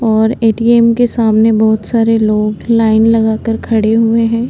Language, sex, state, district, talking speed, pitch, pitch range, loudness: Hindi, female, Uttarakhand, Tehri Garhwal, 175 wpm, 225 Hz, 220-230 Hz, -11 LUFS